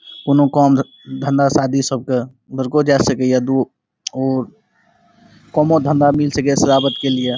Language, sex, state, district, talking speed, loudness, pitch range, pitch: Maithili, male, Bihar, Saharsa, 155 wpm, -16 LUFS, 130-140 Hz, 135 Hz